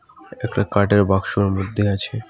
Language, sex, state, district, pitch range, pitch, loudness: Bengali, male, West Bengal, Alipurduar, 95-105 Hz, 100 Hz, -20 LUFS